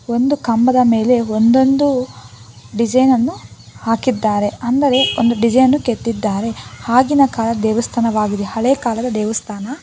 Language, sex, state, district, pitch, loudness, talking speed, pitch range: Kannada, female, Karnataka, Bangalore, 235 Hz, -15 LUFS, 105 wpm, 220-255 Hz